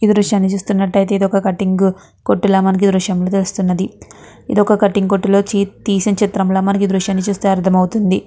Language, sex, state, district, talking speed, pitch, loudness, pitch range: Telugu, female, Andhra Pradesh, Guntur, 205 wpm, 195 Hz, -15 LUFS, 190-200 Hz